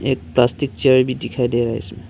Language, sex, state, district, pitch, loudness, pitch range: Hindi, male, Arunachal Pradesh, Longding, 125 Hz, -18 LUFS, 115-130 Hz